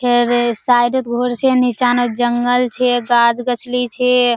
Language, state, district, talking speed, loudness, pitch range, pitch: Surjapuri, Bihar, Kishanganj, 165 wpm, -15 LUFS, 240-250 Hz, 245 Hz